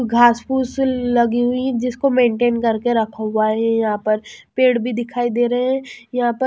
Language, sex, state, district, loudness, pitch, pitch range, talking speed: Hindi, female, Haryana, Jhajjar, -18 LUFS, 240 Hz, 230-250 Hz, 195 wpm